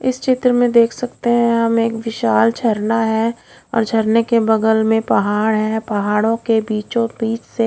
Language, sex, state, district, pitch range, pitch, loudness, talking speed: Hindi, female, Odisha, Khordha, 220-235 Hz, 225 Hz, -17 LUFS, 180 wpm